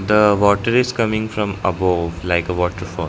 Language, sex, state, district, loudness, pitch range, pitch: English, male, Arunachal Pradesh, Lower Dibang Valley, -18 LUFS, 90-105 Hz, 95 Hz